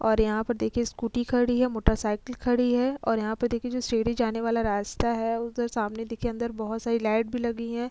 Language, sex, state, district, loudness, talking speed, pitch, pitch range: Hindi, female, Uttar Pradesh, Etah, -27 LUFS, 230 wpm, 230 Hz, 225-245 Hz